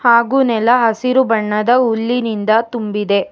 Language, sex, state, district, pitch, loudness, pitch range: Kannada, female, Karnataka, Bangalore, 230 Hz, -15 LUFS, 220-245 Hz